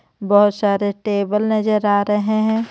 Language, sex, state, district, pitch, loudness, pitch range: Hindi, female, Jharkhand, Ranchi, 210 Hz, -17 LUFS, 205-215 Hz